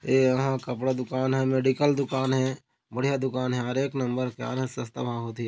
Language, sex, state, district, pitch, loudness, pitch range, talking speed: Chhattisgarhi, male, Chhattisgarh, Korba, 130 Hz, -27 LUFS, 125-130 Hz, 175 wpm